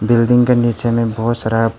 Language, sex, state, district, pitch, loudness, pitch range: Hindi, male, Arunachal Pradesh, Papum Pare, 115 Hz, -15 LUFS, 115-120 Hz